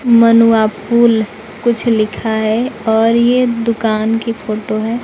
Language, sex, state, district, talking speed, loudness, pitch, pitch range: Hindi, female, Bihar, West Champaran, 130 wpm, -13 LUFS, 225 Hz, 220-235 Hz